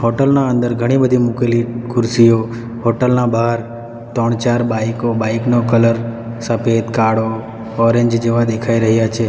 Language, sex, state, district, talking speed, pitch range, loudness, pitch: Gujarati, male, Gujarat, Valsad, 150 wpm, 115-120 Hz, -15 LUFS, 115 Hz